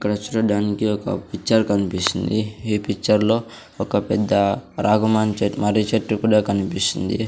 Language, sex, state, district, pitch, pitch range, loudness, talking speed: Telugu, male, Andhra Pradesh, Sri Satya Sai, 105 Hz, 100-110 Hz, -20 LUFS, 115 wpm